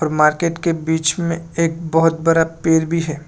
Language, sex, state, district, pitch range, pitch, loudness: Hindi, male, Assam, Kamrup Metropolitan, 160-165 Hz, 165 Hz, -17 LUFS